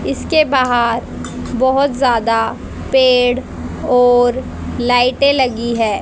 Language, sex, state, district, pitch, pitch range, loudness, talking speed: Hindi, female, Haryana, Rohtak, 245 Hz, 240-260 Hz, -14 LUFS, 90 wpm